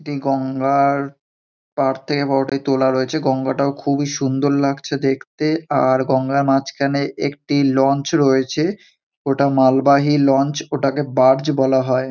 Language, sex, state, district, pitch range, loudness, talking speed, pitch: Bengali, male, West Bengal, North 24 Parganas, 135-140 Hz, -18 LUFS, 140 wpm, 140 Hz